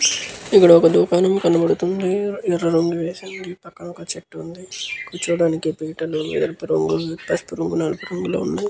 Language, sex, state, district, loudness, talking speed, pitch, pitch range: Telugu, female, Andhra Pradesh, Guntur, -19 LUFS, 125 wpm, 170 Hz, 160-180 Hz